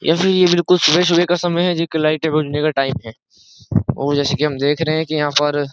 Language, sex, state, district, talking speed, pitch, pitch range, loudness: Hindi, male, Uttar Pradesh, Jyotiba Phule Nagar, 275 wpm, 155 Hz, 145-170 Hz, -16 LUFS